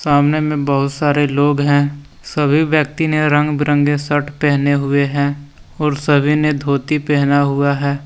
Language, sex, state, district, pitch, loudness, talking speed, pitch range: Hindi, male, Jharkhand, Deoghar, 145 Hz, -16 LUFS, 165 wpm, 140-150 Hz